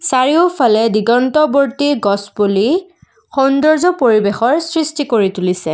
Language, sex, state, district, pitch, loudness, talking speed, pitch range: Assamese, female, Assam, Kamrup Metropolitan, 260 Hz, -14 LUFS, 85 wpm, 215-305 Hz